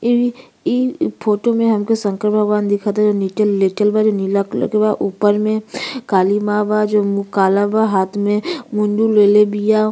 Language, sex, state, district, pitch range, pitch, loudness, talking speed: Bhojpuri, female, Uttar Pradesh, Gorakhpur, 205-215 Hz, 210 Hz, -16 LUFS, 180 wpm